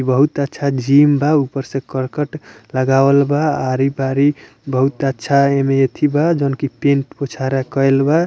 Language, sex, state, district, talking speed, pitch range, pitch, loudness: Bhojpuri, male, Bihar, Muzaffarpur, 175 wpm, 135-145 Hz, 140 Hz, -16 LUFS